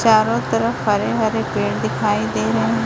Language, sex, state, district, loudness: Hindi, female, Chhattisgarh, Raipur, -19 LUFS